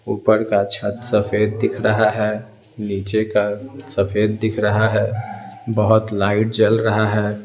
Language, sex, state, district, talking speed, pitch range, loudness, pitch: Hindi, male, Bihar, Patna, 145 wpm, 105-110 Hz, -19 LUFS, 105 Hz